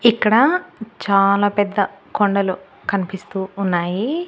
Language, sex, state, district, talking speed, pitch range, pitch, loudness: Telugu, female, Andhra Pradesh, Annamaya, 85 wpm, 195-220 Hz, 200 Hz, -19 LUFS